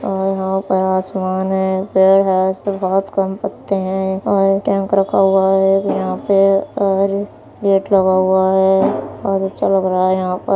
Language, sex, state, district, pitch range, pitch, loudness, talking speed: Hindi, female, Uttar Pradesh, Etah, 190-195 Hz, 195 Hz, -16 LUFS, 175 wpm